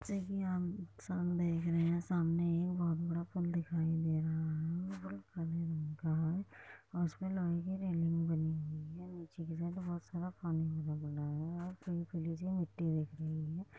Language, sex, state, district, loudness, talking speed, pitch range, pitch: Hindi, female, Uttar Pradesh, Muzaffarnagar, -38 LUFS, 185 wpm, 160-175 Hz, 170 Hz